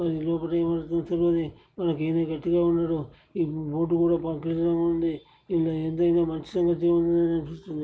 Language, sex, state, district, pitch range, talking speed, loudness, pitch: Telugu, male, Telangana, Nalgonda, 160-170 Hz, 85 wpm, -26 LUFS, 170 Hz